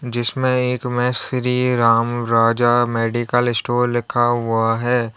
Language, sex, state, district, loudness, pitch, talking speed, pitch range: Hindi, male, Uttar Pradesh, Lalitpur, -18 LUFS, 120 Hz, 125 wpm, 115-125 Hz